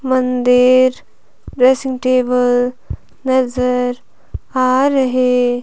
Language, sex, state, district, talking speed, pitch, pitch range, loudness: Hindi, female, Himachal Pradesh, Shimla, 65 wpm, 255 Hz, 250-255 Hz, -15 LUFS